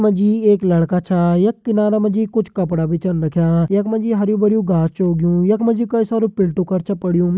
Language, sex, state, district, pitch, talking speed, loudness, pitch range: Hindi, male, Uttarakhand, Uttarkashi, 195 Hz, 260 wpm, -17 LUFS, 175-215 Hz